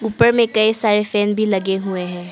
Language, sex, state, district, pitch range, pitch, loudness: Hindi, male, Arunachal Pradesh, Papum Pare, 190-220 Hz, 210 Hz, -17 LUFS